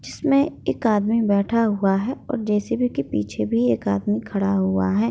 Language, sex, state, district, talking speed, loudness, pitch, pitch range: Hindi, female, Bihar, Begusarai, 185 wpm, -21 LUFS, 205 Hz, 190-230 Hz